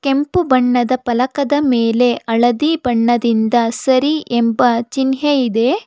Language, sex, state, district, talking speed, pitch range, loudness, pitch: Kannada, female, Karnataka, Bangalore, 100 wpm, 235-275 Hz, -15 LUFS, 250 Hz